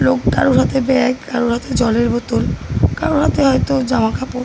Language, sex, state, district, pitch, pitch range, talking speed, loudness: Bengali, female, West Bengal, North 24 Parganas, 245 Hz, 235-260 Hz, 150 wpm, -16 LUFS